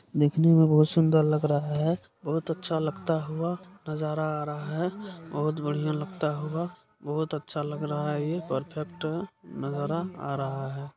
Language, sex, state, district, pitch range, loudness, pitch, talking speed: Maithili, male, Bihar, Supaul, 150-165 Hz, -28 LUFS, 155 Hz, 165 wpm